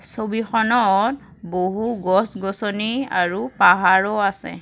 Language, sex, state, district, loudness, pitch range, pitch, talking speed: Assamese, female, Assam, Kamrup Metropolitan, -19 LUFS, 190-225 Hz, 205 Hz, 80 wpm